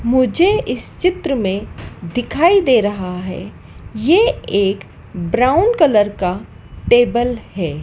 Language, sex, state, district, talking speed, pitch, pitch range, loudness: Hindi, female, Madhya Pradesh, Dhar, 115 wpm, 235 Hz, 190-300 Hz, -16 LUFS